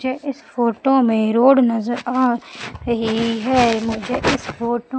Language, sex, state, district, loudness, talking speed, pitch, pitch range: Hindi, female, Madhya Pradesh, Umaria, -18 LUFS, 155 wpm, 240 Hz, 230-260 Hz